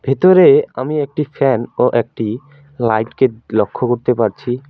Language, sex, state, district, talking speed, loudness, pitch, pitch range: Bengali, male, West Bengal, Alipurduar, 140 wpm, -15 LUFS, 125 Hz, 115-145 Hz